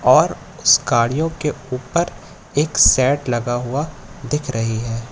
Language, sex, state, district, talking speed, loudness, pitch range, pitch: Hindi, male, Madhya Pradesh, Katni, 140 wpm, -18 LUFS, 120-150 Hz, 130 Hz